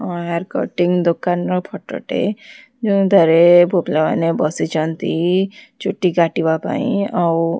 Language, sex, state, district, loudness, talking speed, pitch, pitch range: Odia, female, Odisha, Khordha, -17 LUFS, 110 wpm, 180 Hz, 170-200 Hz